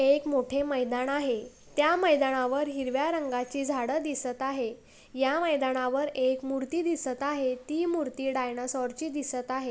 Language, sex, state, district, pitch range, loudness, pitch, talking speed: Marathi, female, Maharashtra, Pune, 255-290 Hz, -29 LUFS, 270 Hz, 140 wpm